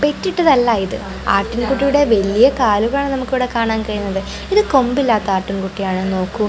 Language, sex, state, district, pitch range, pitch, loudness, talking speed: Malayalam, female, Kerala, Kozhikode, 200-270 Hz, 230 Hz, -16 LUFS, 130 wpm